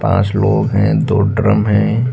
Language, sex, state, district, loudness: Hindi, male, Uttar Pradesh, Lucknow, -14 LUFS